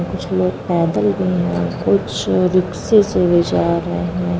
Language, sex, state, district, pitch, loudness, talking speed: Hindi, female, Bihar, Vaishali, 105 Hz, -17 LUFS, 175 wpm